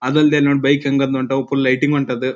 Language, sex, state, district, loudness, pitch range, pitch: Kannada, male, Karnataka, Dharwad, -16 LUFS, 130-145 Hz, 135 Hz